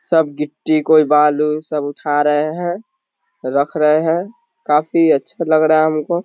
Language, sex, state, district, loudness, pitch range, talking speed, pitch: Hindi, male, Bihar, East Champaran, -16 LUFS, 150-170 Hz, 165 wpm, 155 Hz